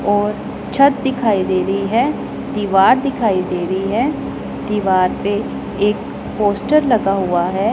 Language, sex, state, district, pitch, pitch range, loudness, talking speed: Hindi, male, Punjab, Pathankot, 205 Hz, 190-235 Hz, -17 LUFS, 140 wpm